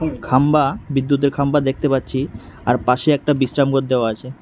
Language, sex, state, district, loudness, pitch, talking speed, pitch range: Bengali, male, Tripura, West Tripura, -18 LUFS, 135 Hz, 165 wpm, 125-145 Hz